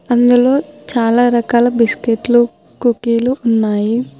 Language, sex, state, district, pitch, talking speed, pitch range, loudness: Telugu, female, Telangana, Hyderabad, 240 Hz, 85 wpm, 230-245 Hz, -14 LUFS